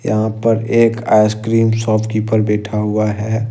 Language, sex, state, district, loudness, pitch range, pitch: Hindi, male, Jharkhand, Ranchi, -15 LUFS, 105-115 Hz, 110 Hz